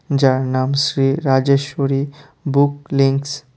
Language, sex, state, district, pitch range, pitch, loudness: Bengali, male, Tripura, West Tripura, 135-145 Hz, 140 Hz, -17 LUFS